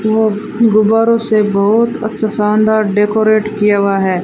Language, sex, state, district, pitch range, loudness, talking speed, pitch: Hindi, female, Rajasthan, Bikaner, 210-220 Hz, -13 LUFS, 140 wpm, 215 Hz